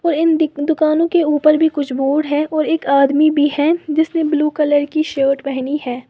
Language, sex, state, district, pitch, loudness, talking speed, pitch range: Hindi, female, Uttar Pradesh, Lalitpur, 300 Hz, -16 LUFS, 205 wpm, 290-315 Hz